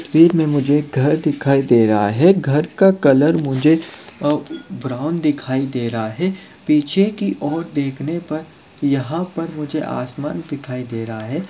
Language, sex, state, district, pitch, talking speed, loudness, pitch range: Hindi, male, Chhattisgarh, Sarguja, 150 Hz, 160 wpm, -18 LUFS, 135-165 Hz